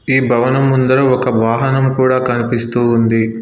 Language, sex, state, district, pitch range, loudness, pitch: Telugu, male, Telangana, Hyderabad, 120-130 Hz, -13 LUFS, 125 Hz